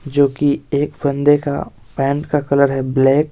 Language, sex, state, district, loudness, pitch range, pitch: Hindi, male, Bihar, West Champaran, -17 LUFS, 135-145 Hz, 140 Hz